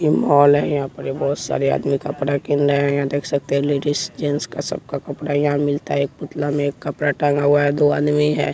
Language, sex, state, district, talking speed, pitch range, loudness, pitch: Hindi, male, Bihar, West Champaran, 255 wpm, 140-145 Hz, -19 LUFS, 145 Hz